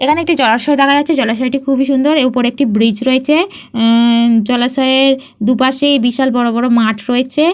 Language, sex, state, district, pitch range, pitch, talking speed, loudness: Bengali, female, Jharkhand, Jamtara, 240-275 Hz, 260 Hz, 165 wpm, -12 LUFS